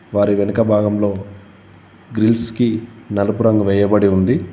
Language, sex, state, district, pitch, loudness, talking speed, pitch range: Telugu, male, Telangana, Komaram Bheem, 105 Hz, -16 LUFS, 120 wpm, 100-115 Hz